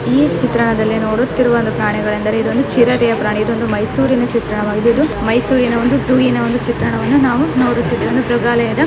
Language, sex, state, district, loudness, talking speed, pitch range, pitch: Kannada, female, Karnataka, Mysore, -15 LUFS, 155 wpm, 215-245 Hz, 235 Hz